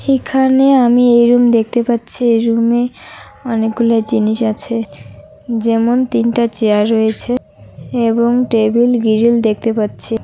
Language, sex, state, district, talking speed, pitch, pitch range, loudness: Bengali, female, West Bengal, Cooch Behar, 105 wpm, 230 Hz, 225-245 Hz, -13 LUFS